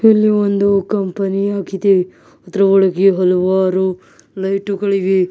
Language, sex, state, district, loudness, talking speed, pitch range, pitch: Kannada, male, Karnataka, Bidar, -15 LUFS, 90 wpm, 190-200 Hz, 195 Hz